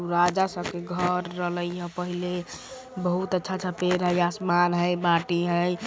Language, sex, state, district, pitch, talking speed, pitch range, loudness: Bajjika, female, Bihar, Vaishali, 180 Hz, 155 wpm, 175-180 Hz, -26 LUFS